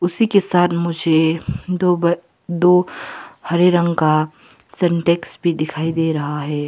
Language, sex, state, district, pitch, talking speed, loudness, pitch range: Hindi, female, Arunachal Pradesh, Papum Pare, 170 Hz, 135 wpm, -18 LUFS, 160-175 Hz